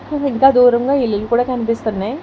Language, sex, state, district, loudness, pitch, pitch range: Telugu, female, Telangana, Hyderabad, -15 LUFS, 245 Hz, 230-270 Hz